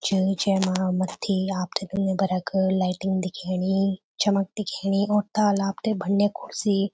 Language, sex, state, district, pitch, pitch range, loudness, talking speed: Garhwali, female, Uttarakhand, Tehri Garhwal, 195 Hz, 190-200 Hz, -25 LUFS, 140 wpm